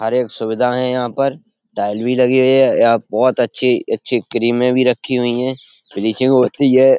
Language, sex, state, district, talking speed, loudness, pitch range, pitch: Hindi, male, Uttar Pradesh, Etah, 195 wpm, -16 LUFS, 120-130 Hz, 125 Hz